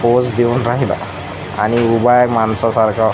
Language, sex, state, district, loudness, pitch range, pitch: Marathi, male, Maharashtra, Gondia, -15 LUFS, 110-120 Hz, 120 Hz